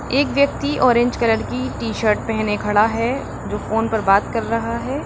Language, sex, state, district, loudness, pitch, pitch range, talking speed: Hindi, female, Uttar Pradesh, Lalitpur, -19 LUFS, 225 Hz, 215-240 Hz, 190 wpm